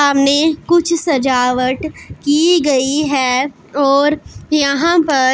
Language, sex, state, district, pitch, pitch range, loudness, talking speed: Hindi, female, Punjab, Pathankot, 285 Hz, 270-310 Hz, -14 LUFS, 100 wpm